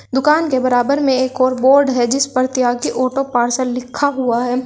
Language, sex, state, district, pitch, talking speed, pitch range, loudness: Hindi, female, Uttar Pradesh, Shamli, 255 Hz, 205 wpm, 250-275 Hz, -16 LUFS